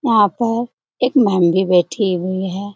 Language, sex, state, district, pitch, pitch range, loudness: Hindi, female, Bihar, Jamui, 200 Hz, 185-230 Hz, -17 LUFS